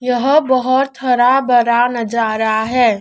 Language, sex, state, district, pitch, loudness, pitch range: Hindi, female, Madhya Pradesh, Dhar, 245 Hz, -14 LUFS, 235-260 Hz